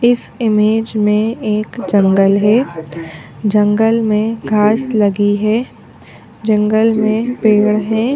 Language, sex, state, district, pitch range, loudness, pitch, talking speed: Hindi, female, Madhya Pradesh, Bhopal, 210-225 Hz, -14 LUFS, 215 Hz, 110 wpm